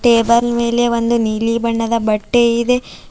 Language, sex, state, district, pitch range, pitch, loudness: Kannada, female, Karnataka, Bidar, 230-235 Hz, 235 Hz, -15 LUFS